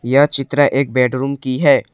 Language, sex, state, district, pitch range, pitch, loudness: Hindi, male, Assam, Kamrup Metropolitan, 130-140 Hz, 135 Hz, -15 LUFS